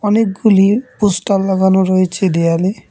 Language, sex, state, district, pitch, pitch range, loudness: Bengali, male, West Bengal, Cooch Behar, 195 Hz, 185-205 Hz, -14 LUFS